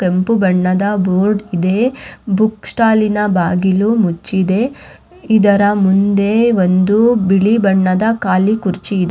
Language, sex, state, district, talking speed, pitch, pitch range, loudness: Kannada, female, Karnataka, Raichur, 110 wpm, 200 Hz, 185-220 Hz, -14 LUFS